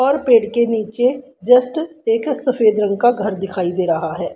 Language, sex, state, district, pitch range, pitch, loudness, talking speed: Hindi, female, Haryana, Rohtak, 205-255 Hz, 235 Hz, -17 LUFS, 190 wpm